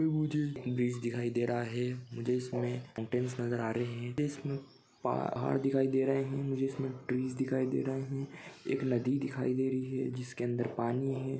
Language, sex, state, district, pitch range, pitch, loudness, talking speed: Hindi, male, Chhattisgarh, Bilaspur, 120-135 Hz, 130 Hz, -34 LUFS, 195 wpm